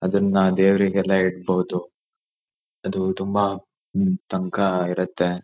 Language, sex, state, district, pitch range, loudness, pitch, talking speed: Kannada, male, Karnataka, Shimoga, 90-100 Hz, -22 LUFS, 95 Hz, 90 wpm